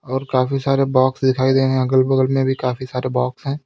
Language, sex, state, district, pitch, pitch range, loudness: Hindi, male, Uttar Pradesh, Lalitpur, 130 Hz, 130-135 Hz, -18 LUFS